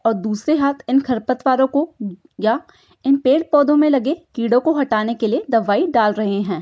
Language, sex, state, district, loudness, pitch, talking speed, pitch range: Hindi, female, Bihar, East Champaran, -18 LUFS, 260 Hz, 190 wpm, 220-285 Hz